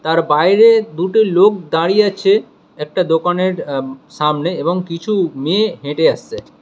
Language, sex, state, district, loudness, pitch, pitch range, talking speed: Bengali, male, West Bengal, Alipurduar, -15 LUFS, 180 Hz, 160-210 Hz, 135 wpm